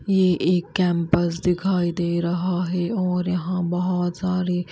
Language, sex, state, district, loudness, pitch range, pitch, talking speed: Hindi, female, Himachal Pradesh, Shimla, -22 LUFS, 175-185 Hz, 180 Hz, 140 wpm